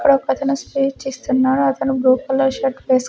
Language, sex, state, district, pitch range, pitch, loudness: Telugu, female, Andhra Pradesh, Sri Satya Sai, 260-275 Hz, 270 Hz, -18 LUFS